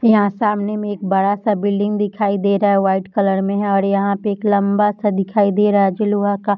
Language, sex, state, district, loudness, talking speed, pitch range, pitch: Hindi, female, Bihar, Darbhanga, -17 LUFS, 235 wpm, 200-210 Hz, 205 Hz